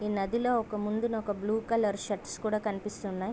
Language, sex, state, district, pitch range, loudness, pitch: Telugu, female, Andhra Pradesh, Visakhapatnam, 205-225 Hz, -31 LUFS, 210 Hz